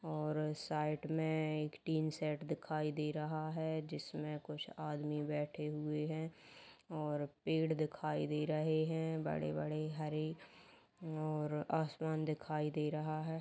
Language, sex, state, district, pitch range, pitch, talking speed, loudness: Hindi, female, Chhattisgarh, Kabirdham, 150-155 Hz, 155 Hz, 135 wpm, -40 LUFS